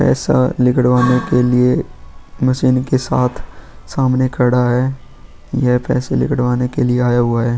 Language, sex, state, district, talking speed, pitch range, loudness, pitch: Hindi, male, Goa, North and South Goa, 140 wpm, 120-130 Hz, -15 LUFS, 125 Hz